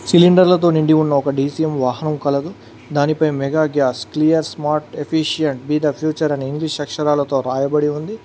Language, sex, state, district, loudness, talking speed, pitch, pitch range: Telugu, male, Telangana, Mahabubabad, -17 LUFS, 155 wpm, 150 Hz, 140-155 Hz